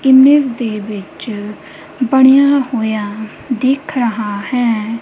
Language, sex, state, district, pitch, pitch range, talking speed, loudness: Punjabi, female, Punjab, Kapurthala, 240 Hz, 215-265 Hz, 85 wpm, -14 LUFS